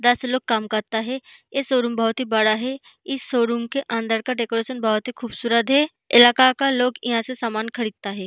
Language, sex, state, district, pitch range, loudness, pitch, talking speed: Hindi, female, Bihar, East Champaran, 225-255 Hz, -21 LUFS, 240 Hz, 210 wpm